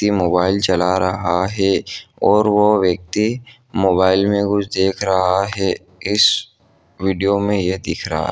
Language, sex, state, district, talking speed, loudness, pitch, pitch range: Hindi, male, Jharkhand, Jamtara, 150 wpm, -17 LUFS, 95 Hz, 95-100 Hz